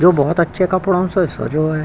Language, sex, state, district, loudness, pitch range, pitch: Hindi, male, Uttar Pradesh, Hamirpur, -17 LUFS, 155-185 Hz, 175 Hz